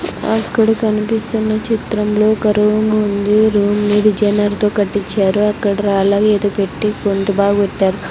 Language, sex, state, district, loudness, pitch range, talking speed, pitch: Telugu, female, Andhra Pradesh, Sri Satya Sai, -15 LUFS, 200-215 Hz, 105 wpm, 210 Hz